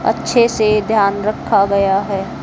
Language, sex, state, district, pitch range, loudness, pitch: Hindi, female, Haryana, Jhajjar, 200-215 Hz, -15 LUFS, 205 Hz